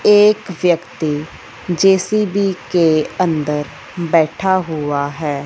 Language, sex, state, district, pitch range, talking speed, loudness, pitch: Hindi, male, Punjab, Fazilka, 150-190 Hz, 90 wpm, -16 LUFS, 170 Hz